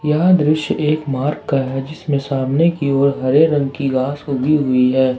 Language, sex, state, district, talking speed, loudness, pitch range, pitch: Hindi, male, Jharkhand, Ranchi, 195 wpm, -17 LUFS, 135-150 Hz, 140 Hz